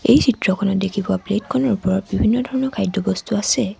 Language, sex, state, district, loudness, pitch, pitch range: Assamese, female, Assam, Sonitpur, -19 LUFS, 205 Hz, 195-250 Hz